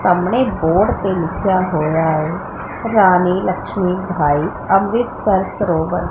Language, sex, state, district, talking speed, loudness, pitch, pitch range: Punjabi, female, Punjab, Pathankot, 110 wpm, -16 LUFS, 185 Hz, 165-195 Hz